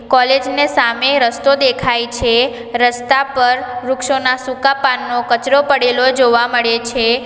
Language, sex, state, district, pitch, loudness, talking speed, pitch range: Gujarati, female, Gujarat, Valsad, 250 Hz, -14 LUFS, 130 wpm, 240-270 Hz